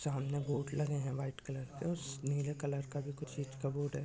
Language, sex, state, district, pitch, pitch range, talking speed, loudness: Angika, male, Bihar, Supaul, 145 Hz, 135-145 Hz, 250 wpm, -39 LUFS